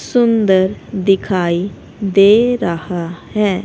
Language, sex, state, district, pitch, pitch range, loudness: Hindi, female, Haryana, Rohtak, 195 Hz, 180-210 Hz, -15 LUFS